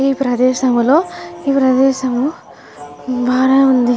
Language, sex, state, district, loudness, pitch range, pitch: Telugu, female, Andhra Pradesh, Guntur, -14 LUFS, 250-275 Hz, 260 Hz